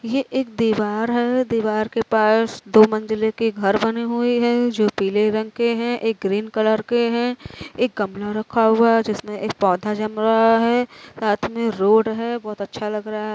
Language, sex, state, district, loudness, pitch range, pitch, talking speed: Hindi, female, Uttar Pradesh, Varanasi, -20 LUFS, 215-235 Hz, 220 Hz, 200 wpm